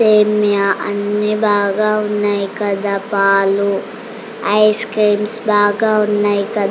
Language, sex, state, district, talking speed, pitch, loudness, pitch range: Telugu, female, Andhra Pradesh, Chittoor, 70 wpm, 210 Hz, -15 LUFS, 200-215 Hz